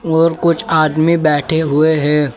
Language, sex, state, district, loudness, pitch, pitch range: Hindi, male, Uttar Pradesh, Saharanpur, -14 LUFS, 160 Hz, 150-165 Hz